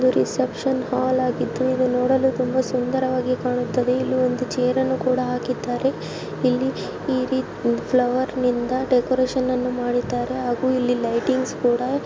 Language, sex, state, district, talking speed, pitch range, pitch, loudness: Kannada, female, Karnataka, Chamarajanagar, 125 wpm, 250-260 Hz, 255 Hz, -22 LUFS